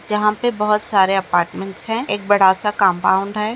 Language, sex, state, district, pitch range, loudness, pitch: Hindi, female, Maharashtra, Aurangabad, 190-210 Hz, -17 LUFS, 205 Hz